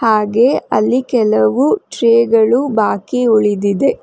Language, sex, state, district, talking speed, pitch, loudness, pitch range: Kannada, female, Karnataka, Bangalore, 105 wpm, 225 Hz, -13 LUFS, 210-245 Hz